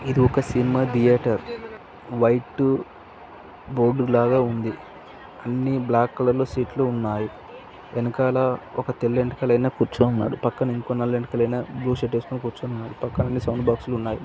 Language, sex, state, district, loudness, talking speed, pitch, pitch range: Telugu, male, Andhra Pradesh, Srikakulam, -23 LUFS, 150 wpm, 125 Hz, 120-130 Hz